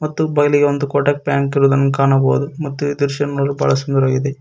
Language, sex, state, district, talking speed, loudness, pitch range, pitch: Kannada, male, Karnataka, Koppal, 175 wpm, -16 LUFS, 140-145 Hz, 140 Hz